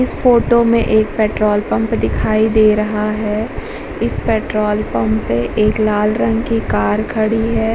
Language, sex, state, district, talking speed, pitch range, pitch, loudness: Hindi, female, Bihar, Vaishali, 165 wpm, 210-225 Hz, 215 Hz, -15 LUFS